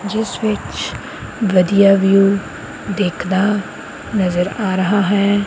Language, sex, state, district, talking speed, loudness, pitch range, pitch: Punjabi, female, Punjab, Kapurthala, 100 wpm, -16 LUFS, 190-205 Hz, 200 Hz